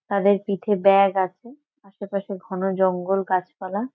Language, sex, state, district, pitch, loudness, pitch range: Bengali, female, West Bengal, Jalpaiguri, 195 Hz, -22 LUFS, 190-200 Hz